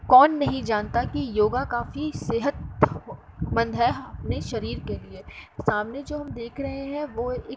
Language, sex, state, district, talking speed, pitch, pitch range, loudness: Hindi, female, Uttar Pradesh, Muzaffarnagar, 165 wpm, 250 Hz, 215-280 Hz, -26 LUFS